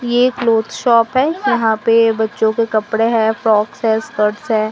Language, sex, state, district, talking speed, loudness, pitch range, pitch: Hindi, female, Assam, Sonitpur, 180 wpm, -15 LUFS, 220-240 Hz, 225 Hz